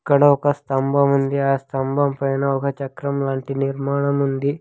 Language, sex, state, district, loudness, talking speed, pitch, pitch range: Telugu, male, Andhra Pradesh, Sri Satya Sai, -20 LUFS, 155 wpm, 140 Hz, 135-140 Hz